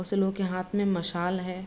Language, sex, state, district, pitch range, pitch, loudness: Hindi, female, Bihar, Araria, 185-195 Hz, 185 Hz, -29 LUFS